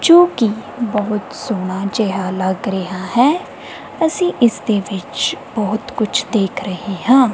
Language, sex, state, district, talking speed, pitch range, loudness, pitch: Punjabi, female, Punjab, Kapurthala, 140 wpm, 195-245 Hz, -17 LUFS, 210 Hz